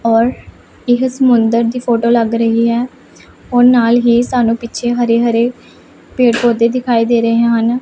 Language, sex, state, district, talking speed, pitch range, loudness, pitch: Punjabi, female, Punjab, Pathankot, 160 wpm, 230-245 Hz, -13 LUFS, 235 Hz